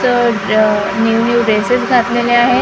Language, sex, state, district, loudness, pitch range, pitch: Marathi, female, Maharashtra, Gondia, -13 LUFS, 215-245 Hz, 235 Hz